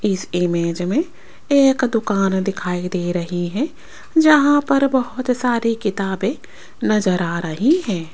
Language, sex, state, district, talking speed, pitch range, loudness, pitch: Hindi, female, Rajasthan, Jaipur, 135 wpm, 180-265 Hz, -19 LUFS, 205 Hz